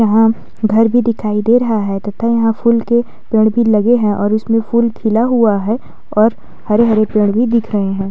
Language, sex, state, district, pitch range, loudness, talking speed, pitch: Hindi, female, Uttar Pradesh, Jalaun, 215-235 Hz, -14 LUFS, 205 wpm, 225 Hz